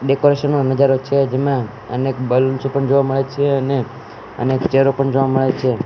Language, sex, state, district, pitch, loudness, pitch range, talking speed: Gujarati, male, Gujarat, Gandhinagar, 135 Hz, -17 LUFS, 130-140 Hz, 185 wpm